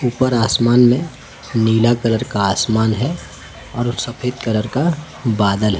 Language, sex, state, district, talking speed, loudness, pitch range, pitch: Hindi, male, Chhattisgarh, Raipur, 145 wpm, -17 LUFS, 110-125 Hz, 120 Hz